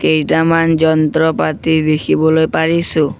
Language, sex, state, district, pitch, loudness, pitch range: Assamese, male, Assam, Sonitpur, 160 Hz, -13 LUFS, 155-160 Hz